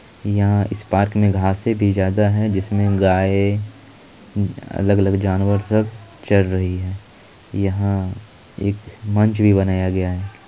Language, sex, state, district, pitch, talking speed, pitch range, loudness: Maithili, male, Bihar, Supaul, 100 Hz, 135 wpm, 95-105 Hz, -19 LUFS